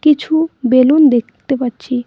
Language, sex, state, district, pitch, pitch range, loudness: Bengali, female, West Bengal, Cooch Behar, 265 Hz, 250-300 Hz, -13 LUFS